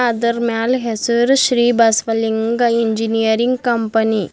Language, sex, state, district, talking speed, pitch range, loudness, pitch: Kannada, female, Karnataka, Bidar, 110 wpm, 225-240 Hz, -16 LUFS, 230 Hz